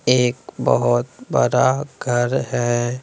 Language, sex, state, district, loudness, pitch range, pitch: Hindi, male, Bihar, West Champaran, -19 LUFS, 120-130 Hz, 120 Hz